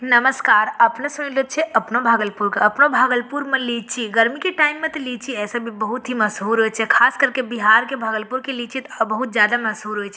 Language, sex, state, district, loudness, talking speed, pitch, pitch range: Angika, female, Bihar, Bhagalpur, -18 LUFS, 220 wpm, 240 Hz, 220-265 Hz